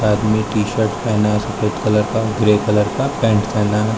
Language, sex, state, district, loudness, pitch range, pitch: Hindi, male, Arunachal Pradesh, Lower Dibang Valley, -17 LUFS, 105-110 Hz, 105 Hz